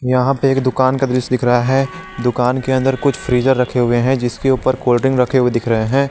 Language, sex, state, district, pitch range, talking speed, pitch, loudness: Hindi, male, Jharkhand, Garhwa, 125-135 Hz, 255 wpm, 130 Hz, -16 LUFS